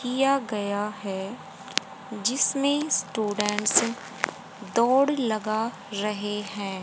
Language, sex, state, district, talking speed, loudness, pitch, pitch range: Hindi, female, Haryana, Rohtak, 80 wpm, -26 LUFS, 210 Hz, 205-250 Hz